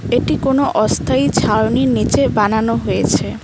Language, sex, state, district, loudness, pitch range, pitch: Bengali, female, West Bengal, Cooch Behar, -15 LUFS, 220-265 Hz, 230 Hz